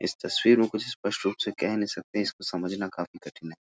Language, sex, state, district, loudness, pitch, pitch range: Hindi, male, Uttar Pradesh, Varanasi, -28 LUFS, 100 Hz, 90-110 Hz